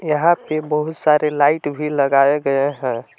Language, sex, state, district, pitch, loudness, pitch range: Hindi, male, Jharkhand, Palamu, 150 Hz, -18 LUFS, 140-155 Hz